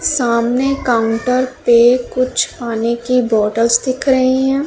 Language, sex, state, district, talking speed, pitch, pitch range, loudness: Hindi, female, Punjab, Pathankot, 130 wpm, 250 Hz, 235-260 Hz, -15 LUFS